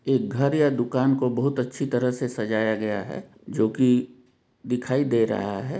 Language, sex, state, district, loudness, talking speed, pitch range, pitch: Hindi, male, Jharkhand, Jamtara, -24 LUFS, 185 wpm, 115-130 Hz, 125 Hz